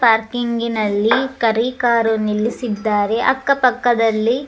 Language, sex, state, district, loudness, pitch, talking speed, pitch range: Kannada, male, Karnataka, Dharwad, -17 LUFS, 230 Hz, 105 wpm, 220-245 Hz